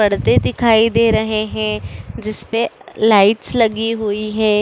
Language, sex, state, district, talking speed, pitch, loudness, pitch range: Hindi, female, Uttar Pradesh, Budaun, 130 wpm, 215 Hz, -16 LUFS, 205-225 Hz